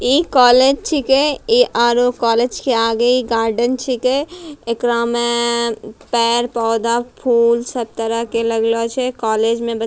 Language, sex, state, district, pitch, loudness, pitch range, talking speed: Angika, female, Bihar, Bhagalpur, 235 Hz, -16 LUFS, 230-255 Hz, 140 wpm